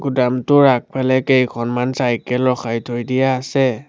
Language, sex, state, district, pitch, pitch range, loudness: Assamese, male, Assam, Sonitpur, 130 Hz, 120-130 Hz, -17 LUFS